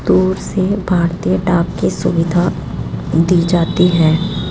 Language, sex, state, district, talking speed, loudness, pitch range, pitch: Hindi, female, Rajasthan, Jaipur, 120 wpm, -15 LUFS, 165-180 Hz, 175 Hz